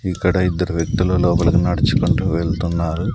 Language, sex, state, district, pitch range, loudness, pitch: Telugu, male, Andhra Pradesh, Sri Satya Sai, 85-95 Hz, -18 LUFS, 90 Hz